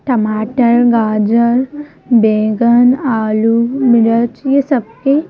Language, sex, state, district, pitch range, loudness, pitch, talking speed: Hindi, female, Madhya Pradesh, Bhopal, 225-260 Hz, -12 LUFS, 235 Hz, 80 wpm